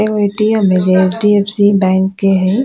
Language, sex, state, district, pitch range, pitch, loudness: Bajjika, female, Bihar, Vaishali, 190-210 Hz, 200 Hz, -12 LUFS